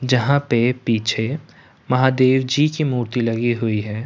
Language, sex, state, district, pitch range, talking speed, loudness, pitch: Hindi, male, Uttar Pradesh, Muzaffarnagar, 115-130 Hz, 150 wpm, -19 LUFS, 125 Hz